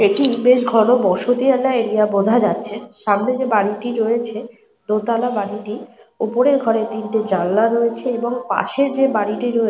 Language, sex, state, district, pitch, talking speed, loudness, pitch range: Bengali, female, Jharkhand, Sahebganj, 230 Hz, 140 wpm, -18 LUFS, 215-250 Hz